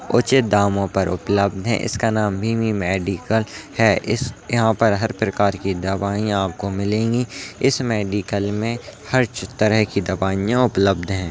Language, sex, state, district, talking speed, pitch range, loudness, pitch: Hindi, male, Uttarakhand, Tehri Garhwal, 150 wpm, 100-115 Hz, -20 LUFS, 105 Hz